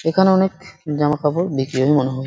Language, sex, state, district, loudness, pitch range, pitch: Bengali, male, West Bengal, Purulia, -18 LUFS, 135-185 Hz, 150 Hz